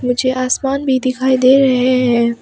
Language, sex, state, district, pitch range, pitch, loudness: Hindi, female, Arunachal Pradesh, Papum Pare, 250-260 Hz, 255 Hz, -14 LUFS